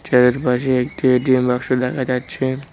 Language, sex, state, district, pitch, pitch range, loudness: Bengali, male, West Bengal, Cooch Behar, 125 Hz, 125-130 Hz, -18 LUFS